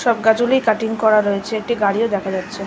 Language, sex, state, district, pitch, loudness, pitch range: Bengali, female, West Bengal, North 24 Parganas, 220 Hz, -17 LUFS, 200-225 Hz